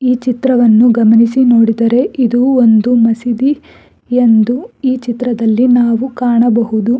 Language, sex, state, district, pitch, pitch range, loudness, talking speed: Kannada, female, Karnataka, Bangalore, 240 Hz, 230-250 Hz, -11 LUFS, 105 wpm